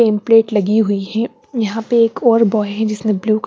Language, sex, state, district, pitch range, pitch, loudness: Hindi, female, Bihar, Katihar, 210-230 Hz, 220 Hz, -15 LUFS